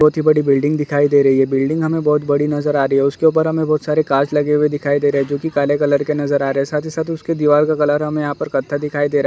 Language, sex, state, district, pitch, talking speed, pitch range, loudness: Hindi, male, Uttar Pradesh, Jalaun, 145 Hz, 340 wpm, 145-150 Hz, -16 LUFS